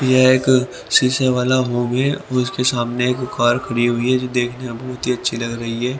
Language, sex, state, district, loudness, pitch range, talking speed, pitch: Hindi, male, Haryana, Rohtak, -18 LUFS, 120-130 Hz, 190 wpm, 125 Hz